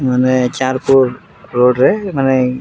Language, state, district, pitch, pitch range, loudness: Sambalpuri, Odisha, Sambalpur, 130 Hz, 125-135 Hz, -14 LUFS